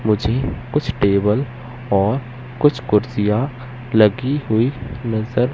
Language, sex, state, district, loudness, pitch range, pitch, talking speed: Hindi, male, Madhya Pradesh, Katni, -19 LUFS, 110-130 Hz, 125 Hz, 95 wpm